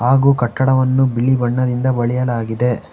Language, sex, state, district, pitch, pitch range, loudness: Kannada, male, Karnataka, Bangalore, 125 Hz, 120-130 Hz, -16 LUFS